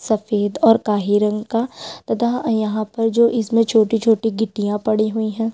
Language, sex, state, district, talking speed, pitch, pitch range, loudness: Hindi, female, Chhattisgarh, Sukma, 185 wpm, 220 Hz, 215-225 Hz, -18 LUFS